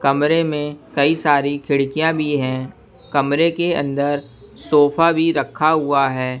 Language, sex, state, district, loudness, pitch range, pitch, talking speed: Hindi, male, Bihar, West Champaran, -18 LUFS, 140-155 Hz, 145 Hz, 140 wpm